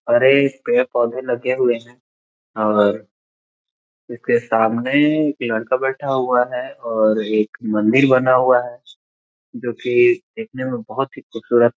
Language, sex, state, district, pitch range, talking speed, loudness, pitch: Hindi, male, Chhattisgarh, Korba, 110-135 Hz, 140 wpm, -18 LUFS, 120 Hz